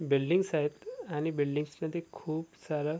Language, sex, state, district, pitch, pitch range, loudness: Marathi, male, Maharashtra, Sindhudurg, 155 Hz, 150-170 Hz, -33 LUFS